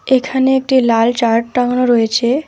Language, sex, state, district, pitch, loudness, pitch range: Bengali, female, West Bengal, Alipurduar, 250 Hz, -14 LUFS, 235-265 Hz